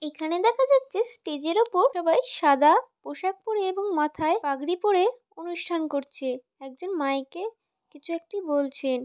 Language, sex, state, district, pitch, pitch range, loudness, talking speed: Bengali, female, West Bengal, North 24 Parganas, 345 Hz, 295-410 Hz, -25 LUFS, 135 wpm